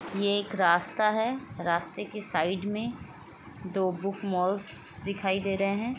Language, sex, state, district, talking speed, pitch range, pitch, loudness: Hindi, female, Chhattisgarh, Sukma, 150 wpm, 180-205 Hz, 195 Hz, -29 LUFS